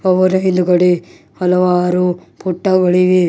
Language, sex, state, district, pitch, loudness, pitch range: Kannada, male, Karnataka, Bidar, 180 Hz, -14 LUFS, 180-185 Hz